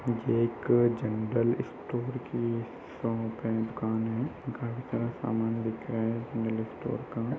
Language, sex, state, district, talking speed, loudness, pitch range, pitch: Hindi, male, Uttar Pradesh, Jyotiba Phule Nagar, 145 wpm, -31 LUFS, 115-120 Hz, 115 Hz